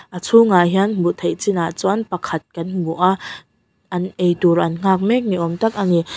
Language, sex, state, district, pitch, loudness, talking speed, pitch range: Mizo, female, Mizoram, Aizawl, 180 Hz, -18 LUFS, 205 wpm, 175-195 Hz